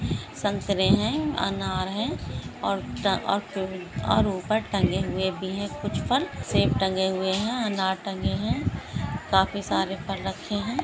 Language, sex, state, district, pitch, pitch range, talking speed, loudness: Hindi, female, Bihar, Jahanabad, 195 Hz, 190-215 Hz, 145 wpm, -26 LUFS